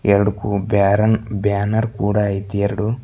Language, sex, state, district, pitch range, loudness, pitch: Kannada, male, Karnataka, Bidar, 100-110 Hz, -18 LUFS, 105 Hz